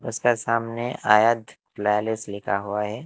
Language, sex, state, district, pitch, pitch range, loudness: Hindi, male, Himachal Pradesh, Shimla, 110 Hz, 105-115 Hz, -23 LUFS